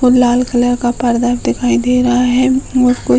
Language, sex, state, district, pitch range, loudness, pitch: Hindi, female, Uttar Pradesh, Hamirpur, 240-250 Hz, -13 LUFS, 245 Hz